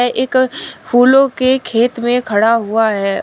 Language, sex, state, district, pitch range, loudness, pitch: Hindi, female, Uttar Pradesh, Shamli, 225-255 Hz, -13 LUFS, 245 Hz